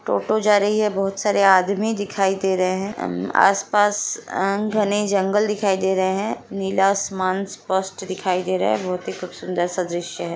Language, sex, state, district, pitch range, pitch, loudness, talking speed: Hindi, female, Bihar, Lakhisarai, 185-205 Hz, 195 Hz, -21 LUFS, 190 wpm